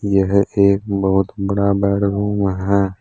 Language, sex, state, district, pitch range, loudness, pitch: Hindi, male, Uttar Pradesh, Saharanpur, 95-100 Hz, -17 LUFS, 100 Hz